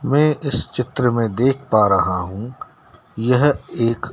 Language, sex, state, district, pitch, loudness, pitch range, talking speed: Hindi, male, Madhya Pradesh, Dhar, 125 Hz, -19 LUFS, 110-140 Hz, 145 wpm